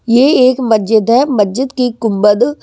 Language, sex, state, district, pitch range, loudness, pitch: Hindi, male, Delhi, New Delhi, 220-260 Hz, -11 LUFS, 245 Hz